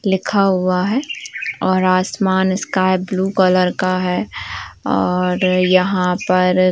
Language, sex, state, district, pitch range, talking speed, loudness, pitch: Hindi, female, Uttar Pradesh, Varanasi, 185-190 Hz, 125 wpm, -17 LUFS, 185 Hz